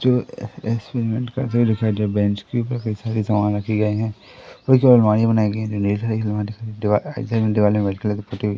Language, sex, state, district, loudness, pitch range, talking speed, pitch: Hindi, male, Madhya Pradesh, Katni, -20 LUFS, 105-115 Hz, 195 wpm, 110 Hz